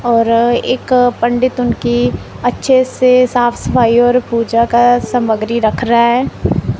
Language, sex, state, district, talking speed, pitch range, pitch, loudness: Hindi, female, Punjab, Kapurthala, 130 wpm, 230-245 Hz, 240 Hz, -13 LUFS